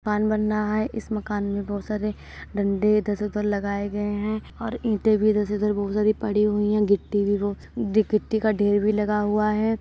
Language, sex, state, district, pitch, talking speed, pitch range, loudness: Hindi, female, Uttar Pradesh, Jyotiba Phule Nagar, 210 Hz, 220 wpm, 205-215 Hz, -24 LUFS